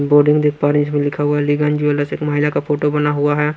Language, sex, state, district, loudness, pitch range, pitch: Hindi, male, Punjab, Pathankot, -16 LUFS, 145-150 Hz, 145 Hz